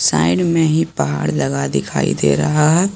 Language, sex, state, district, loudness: Hindi, male, Jharkhand, Garhwa, -16 LUFS